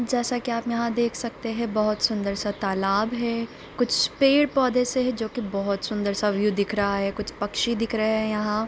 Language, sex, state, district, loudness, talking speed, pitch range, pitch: Hindi, female, Bihar, Bhagalpur, -24 LUFS, 215 wpm, 205-235 Hz, 220 Hz